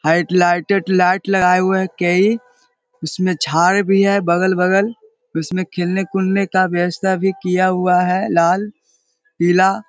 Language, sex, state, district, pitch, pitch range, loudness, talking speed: Hindi, male, Bihar, Jahanabad, 185 Hz, 180-195 Hz, -16 LUFS, 145 wpm